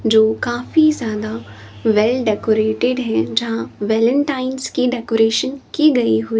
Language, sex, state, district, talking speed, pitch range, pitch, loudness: Hindi, female, Chhattisgarh, Raipur, 120 wpm, 205-255 Hz, 225 Hz, -17 LUFS